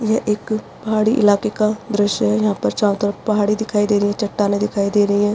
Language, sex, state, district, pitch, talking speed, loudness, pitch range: Hindi, female, Uttarakhand, Uttarkashi, 210 Hz, 235 wpm, -18 LUFS, 205-215 Hz